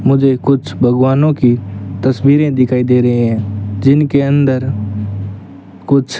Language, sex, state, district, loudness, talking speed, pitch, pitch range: Hindi, male, Rajasthan, Bikaner, -13 LUFS, 125 wpm, 125 Hz, 105-135 Hz